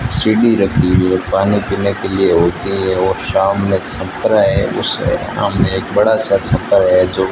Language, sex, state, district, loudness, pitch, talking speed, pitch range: Hindi, male, Rajasthan, Bikaner, -14 LUFS, 95 Hz, 190 wpm, 95-100 Hz